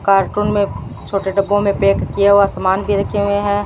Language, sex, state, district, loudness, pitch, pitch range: Hindi, female, Rajasthan, Bikaner, -16 LUFS, 200 Hz, 195-205 Hz